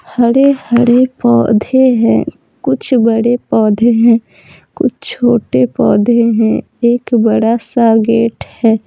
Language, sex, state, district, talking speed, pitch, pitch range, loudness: Hindi, female, Bihar, Patna, 110 wpm, 230 Hz, 225-240 Hz, -11 LUFS